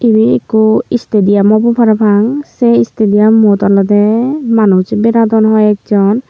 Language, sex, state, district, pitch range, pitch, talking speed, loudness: Chakma, female, Tripura, Unakoti, 205-225 Hz, 215 Hz, 105 wpm, -10 LUFS